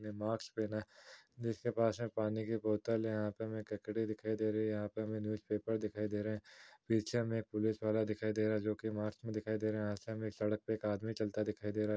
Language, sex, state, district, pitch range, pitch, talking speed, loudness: Hindi, male, Chhattisgarh, Jashpur, 105-110 Hz, 110 Hz, 270 wpm, -38 LUFS